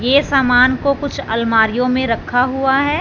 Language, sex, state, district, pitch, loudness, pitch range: Hindi, male, Punjab, Fazilka, 260 Hz, -15 LUFS, 245-280 Hz